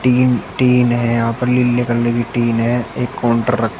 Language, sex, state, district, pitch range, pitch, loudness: Hindi, male, Uttar Pradesh, Shamli, 115-125 Hz, 120 Hz, -16 LUFS